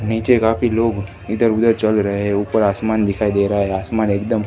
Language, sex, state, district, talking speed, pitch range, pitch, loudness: Hindi, male, Gujarat, Gandhinagar, 200 wpm, 100-110 Hz, 110 Hz, -17 LUFS